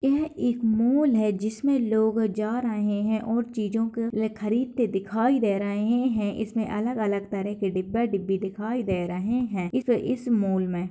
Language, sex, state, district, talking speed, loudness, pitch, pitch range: Hindi, female, Bihar, Kishanganj, 170 wpm, -26 LUFS, 220 Hz, 205-235 Hz